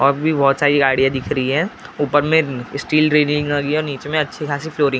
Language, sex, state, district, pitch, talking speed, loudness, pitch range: Hindi, male, Maharashtra, Gondia, 145 Hz, 215 wpm, -18 LUFS, 140-150 Hz